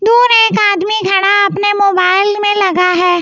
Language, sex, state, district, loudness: Hindi, female, Delhi, New Delhi, -10 LUFS